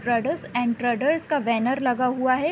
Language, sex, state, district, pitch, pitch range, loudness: Hindi, female, Uttar Pradesh, Deoria, 255 Hz, 240-285 Hz, -23 LUFS